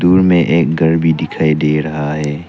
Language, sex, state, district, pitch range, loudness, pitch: Hindi, male, Arunachal Pradesh, Papum Pare, 75-85 Hz, -14 LUFS, 80 Hz